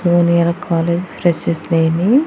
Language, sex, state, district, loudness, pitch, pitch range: Telugu, female, Andhra Pradesh, Annamaya, -16 LUFS, 170 Hz, 165-175 Hz